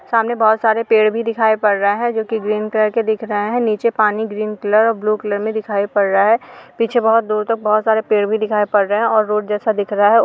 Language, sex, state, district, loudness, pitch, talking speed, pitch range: Hindi, female, Uttar Pradesh, Jalaun, -16 LUFS, 215 Hz, 280 wpm, 210-225 Hz